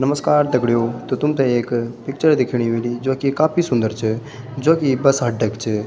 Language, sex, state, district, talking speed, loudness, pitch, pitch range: Garhwali, male, Uttarakhand, Tehri Garhwal, 195 wpm, -19 LUFS, 125 Hz, 115-140 Hz